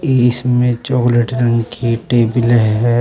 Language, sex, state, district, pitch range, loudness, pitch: Hindi, male, Uttar Pradesh, Shamli, 120-125 Hz, -14 LUFS, 120 Hz